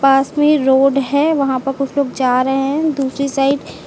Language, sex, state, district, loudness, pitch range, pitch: Hindi, female, Uttar Pradesh, Lucknow, -15 LUFS, 270-280 Hz, 275 Hz